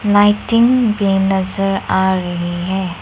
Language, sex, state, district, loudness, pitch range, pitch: Hindi, female, Arunachal Pradesh, Lower Dibang Valley, -15 LUFS, 190-205 Hz, 195 Hz